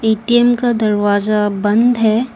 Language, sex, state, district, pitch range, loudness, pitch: Hindi, female, Assam, Kamrup Metropolitan, 210-240 Hz, -14 LUFS, 220 Hz